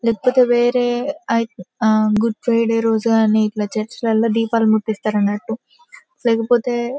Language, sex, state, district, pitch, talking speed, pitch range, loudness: Telugu, female, Telangana, Karimnagar, 230 Hz, 120 wpm, 220-240 Hz, -18 LUFS